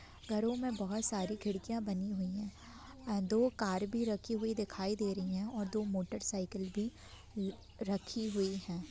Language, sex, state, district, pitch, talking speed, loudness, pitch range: Hindi, female, Bihar, Gopalganj, 205 Hz, 175 wpm, -38 LUFS, 195-220 Hz